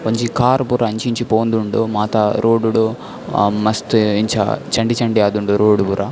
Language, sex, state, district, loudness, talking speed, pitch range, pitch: Tulu, male, Karnataka, Dakshina Kannada, -16 LUFS, 165 wpm, 105-115 Hz, 110 Hz